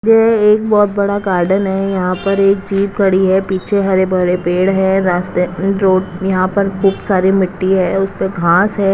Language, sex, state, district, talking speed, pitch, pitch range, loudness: Hindi, female, Punjab, Kapurthala, 195 wpm, 195 Hz, 185-200 Hz, -14 LUFS